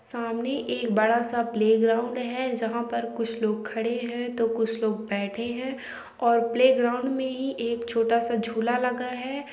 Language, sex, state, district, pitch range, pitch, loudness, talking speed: Bhojpuri, female, Uttar Pradesh, Gorakhpur, 230-250 Hz, 235 Hz, -26 LUFS, 170 wpm